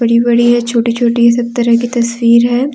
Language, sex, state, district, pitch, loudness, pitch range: Hindi, female, Jharkhand, Deoghar, 235 Hz, -11 LUFS, 235-240 Hz